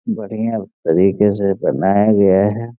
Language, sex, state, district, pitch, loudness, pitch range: Hindi, male, Uttar Pradesh, Deoria, 105 Hz, -16 LUFS, 100-115 Hz